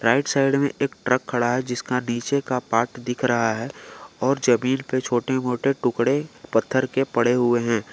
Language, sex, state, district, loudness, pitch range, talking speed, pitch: Hindi, male, Jharkhand, Garhwa, -22 LUFS, 120-135 Hz, 190 wpm, 125 Hz